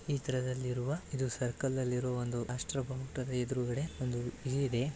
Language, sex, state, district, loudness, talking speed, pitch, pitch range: Kannada, male, Karnataka, Bellary, -36 LUFS, 145 wpm, 130 Hz, 125-135 Hz